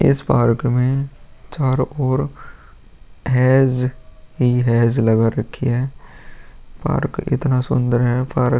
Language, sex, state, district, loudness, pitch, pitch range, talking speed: Hindi, male, Bihar, Vaishali, -18 LUFS, 125 Hz, 120-135 Hz, 120 wpm